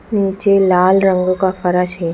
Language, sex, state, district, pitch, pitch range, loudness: Hindi, female, Bihar, East Champaran, 185 Hz, 180-195 Hz, -14 LUFS